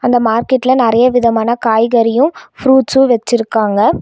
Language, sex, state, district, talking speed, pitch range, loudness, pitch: Tamil, female, Tamil Nadu, Nilgiris, 105 wpm, 225-260 Hz, -12 LUFS, 240 Hz